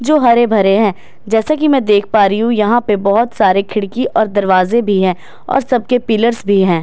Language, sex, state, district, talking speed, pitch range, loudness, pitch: Hindi, female, Bihar, Katihar, 220 wpm, 200-240 Hz, -13 LUFS, 220 Hz